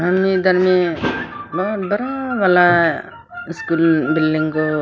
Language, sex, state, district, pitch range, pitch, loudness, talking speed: Hindi, female, Arunachal Pradesh, Lower Dibang Valley, 165-195 Hz, 180 Hz, -17 LUFS, 100 wpm